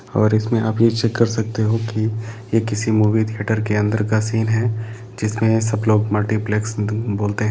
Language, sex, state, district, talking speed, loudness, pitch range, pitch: Hindi, male, Jharkhand, Jamtara, 190 wpm, -19 LUFS, 105-110 Hz, 110 Hz